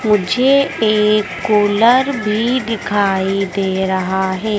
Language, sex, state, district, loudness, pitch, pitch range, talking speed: Hindi, female, Madhya Pradesh, Dhar, -15 LUFS, 210 Hz, 195-230 Hz, 105 wpm